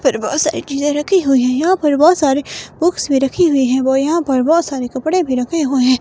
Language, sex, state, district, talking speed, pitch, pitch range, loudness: Hindi, female, Himachal Pradesh, Shimla, 250 wpm, 285 Hz, 265-330 Hz, -15 LUFS